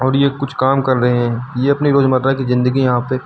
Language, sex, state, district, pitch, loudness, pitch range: Hindi, male, Uttar Pradesh, Lucknow, 130 Hz, -15 LUFS, 125-135 Hz